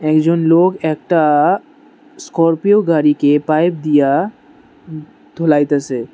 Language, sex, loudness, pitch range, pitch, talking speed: Bengali, male, -14 LUFS, 150-195 Hz, 160 Hz, 90 wpm